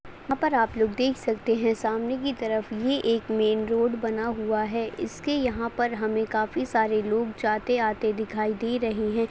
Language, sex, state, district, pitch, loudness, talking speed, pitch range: Hindi, female, Uttar Pradesh, Ghazipur, 225 Hz, -26 LUFS, 195 wpm, 220-235 Hz